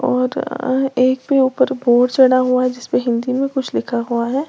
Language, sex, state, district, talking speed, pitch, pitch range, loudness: Hindi, female, Uttar Pradesh, Lalitpur, 200 wpm, 255 Hz, 250-260 Hz, -17 LUFS